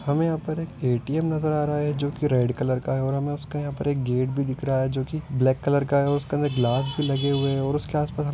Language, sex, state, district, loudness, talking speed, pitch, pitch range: Hindi, male, Andhra Pradesh, Anantapur, -25 LUFS, 340 wpm, 140 Hz, 135-150 Hz